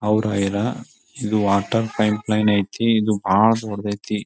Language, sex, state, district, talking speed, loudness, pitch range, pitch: Kannada, male, Karnataka, Bijapur, 140 wpm, -20 LUFS, 100-110 Hz, 105 Hz